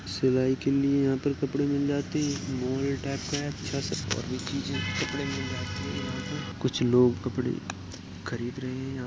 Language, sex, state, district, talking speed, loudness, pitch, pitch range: Hindi, male, Uttar Pradesh, Jalaun, 210 wpm, -29 LUFS, 130 Hz, 125-140 Hz